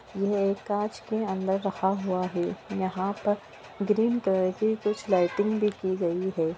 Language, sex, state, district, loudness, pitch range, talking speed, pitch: Hindi, female, Bihar, Vaishali, -28 LUFS, 185-210 Hz, 175 wpm, 195 Hz